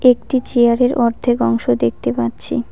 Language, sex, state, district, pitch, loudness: Bengali, female, West Bengal, Cooch Behar, 230 Hz, -16 LUFS